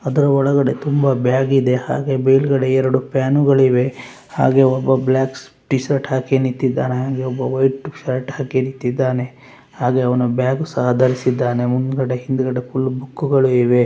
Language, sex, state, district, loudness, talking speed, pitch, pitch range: Kannada, male, Karnataka, Raichur, -17 LUFS, 145 wpm, 130 Hz, 130-135 Hz